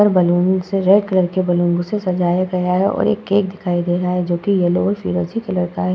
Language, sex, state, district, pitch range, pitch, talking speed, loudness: Hindi, female, Uttar Pradesh, Muzaffarnagar, 175-195 Hz, 180 Hz, 250 wpm, -17 LUFS